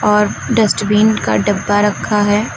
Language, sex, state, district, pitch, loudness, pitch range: Hindi, female, Uttar Pradesh, Lucknow, 210 Hz, -14 LUFS, 205-210 Hz